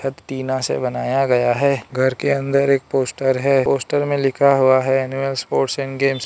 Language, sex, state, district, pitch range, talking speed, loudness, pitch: Hindi, male, Arunachal Pradesh, Lower Dibang Valley, 130-140 Hz, 200 wpm, -18 LUFS, 135 Hz